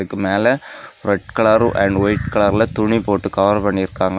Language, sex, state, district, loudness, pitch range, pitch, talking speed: Tamil, male, Tamil Nadu, Kanyakumari, -17 LUFS, 100-110 Hz, 100 Hz, 170 wpm